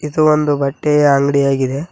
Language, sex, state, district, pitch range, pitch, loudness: Kannada, male, Karnataka, Koppal, 140-150 Hz, 145 Hz, -14 LUFS